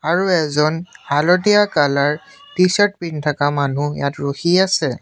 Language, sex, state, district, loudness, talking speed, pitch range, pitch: Assamese, male, Assam, Sonitpur, -17 LUFS, 145 wpm, 145-185 Hz, 155 Hz